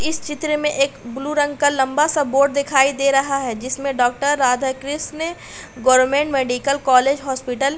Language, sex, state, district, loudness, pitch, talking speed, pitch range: Hindi, female, Uttar Pradesh, Hamirpur, -18 LUFS, 275 Hz, 175 wpm, 260-290 Hz